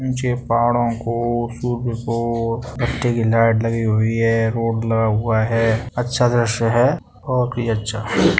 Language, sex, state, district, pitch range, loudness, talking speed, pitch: Hindi, male, Uttar Pradesh, Etah, 115-120 Hz, -19 LUFS, 145 wpm, 115 Hz